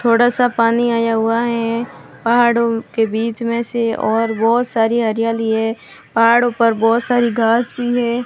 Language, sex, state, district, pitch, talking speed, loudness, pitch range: Hindi, female, Rajasthan, Barmer, 230 Hz, 165 wpm, -16 LUFS, 225-235 Hz